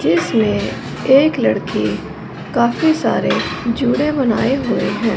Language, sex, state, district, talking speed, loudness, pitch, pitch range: Hindi, female, Punjab, Fazilka, 105 wpm, -16 LUFS, 245 Hz, 235-275 Hz